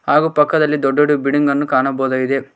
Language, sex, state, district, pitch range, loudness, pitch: Kannada, male, Karnataka, Koppal, 135-150 Hz, -15 LUFS, 140 Hz